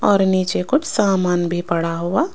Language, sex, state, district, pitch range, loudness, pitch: Hindi, female, Rajasthan, Jaipur, 175-210 Hz, -19 LUFS, 185 Hz